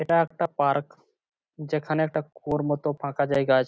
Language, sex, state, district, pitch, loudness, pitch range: Bengali, male, West Bengal, Purulia, 150 Hz, -26 LUFS, 140-155 Hz